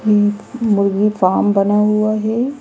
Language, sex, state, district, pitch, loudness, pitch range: Hindi, female, Madhya Pradesh, Bhopal, 210 Hz, -16 LUFS, 205-215 Hz